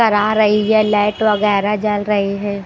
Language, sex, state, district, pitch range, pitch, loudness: Hindi, female, Bihar, Katihar, 205-215 Hz, 210 Hz, -15 LUFS